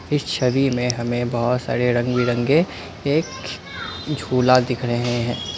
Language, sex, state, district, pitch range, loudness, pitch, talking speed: Hindi, male, Assam, Kamrup Metropolitan, 120-130 Hz, -21 LUFS, 125 Hz, 140 wpm